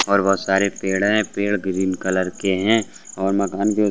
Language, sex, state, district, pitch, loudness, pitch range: Hindi, male, Bihar, Saran, 100 Hz, -20 LUFS, 95-100 Hz